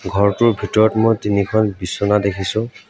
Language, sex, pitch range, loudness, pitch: Assamese, male, 100-110 Hz, -17 LUFS, 105 Hz